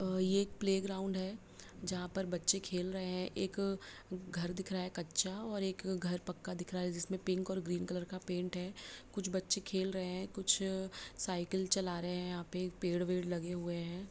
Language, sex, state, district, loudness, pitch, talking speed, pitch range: Hindi, female, Bihar, Lakhisarai, -38 LUFS, 185 Hz, 215 wpm, 180-190 Hz